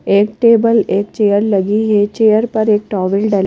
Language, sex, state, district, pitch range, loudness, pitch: Hindi, female, Madhya Pradesh, Bhopal, 200-220 Hz, -13 LUFS, 210 Hz